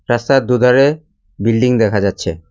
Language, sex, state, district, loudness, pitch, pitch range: Bengali, male, West Bengal, Cooch Behar, -14 LUFS, 120 Hz, 100-135 Hz